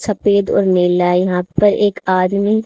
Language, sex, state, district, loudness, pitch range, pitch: Hindi, female, Haryana, Charkhi Dadri, -15 LUFS, 180-205 Hz, 190 Hz